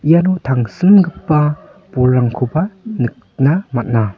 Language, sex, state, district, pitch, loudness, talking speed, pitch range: Garo, male, Meghalaya, North Garo Hills, 150 Hz, -15 LUFS, 70 wpm, 125-185 Hz